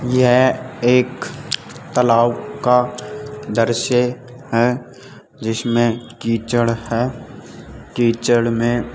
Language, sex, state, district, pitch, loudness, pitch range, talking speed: Hindi, male, Rajasthan, Jaipur, 120 Hz, -18 LUFS, 115-125 Hz, 80 wpm